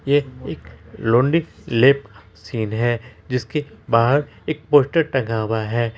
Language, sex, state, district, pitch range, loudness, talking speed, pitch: Hindi, male, Bihar, Araria, 110-135 Hz, -20 LUFS, 130 wpm, 120 Hz